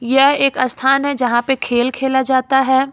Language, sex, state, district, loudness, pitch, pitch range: Hindi, female, Jharkhand, Ranchi, -15 LUFS, 265 Hz, 255-270 Hz